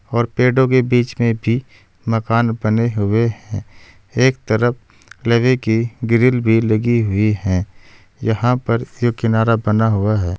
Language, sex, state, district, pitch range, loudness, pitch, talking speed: Hindi, male, Uttar Pradesh, Saharanpur, 105-120 Hz, -17 LUFS, 115 Hz, 150 wpm